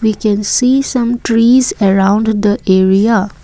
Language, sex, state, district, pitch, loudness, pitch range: English, female, Assam, Kamrup Metropolitan, 215 Hz, -12 LUFS, 200-240 Hz